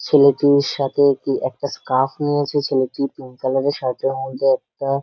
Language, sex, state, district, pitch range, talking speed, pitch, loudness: Bengali, male, West Bengal, Malda, 130-140 Hz, 145 wpm, 135 Hz, -19 LUFS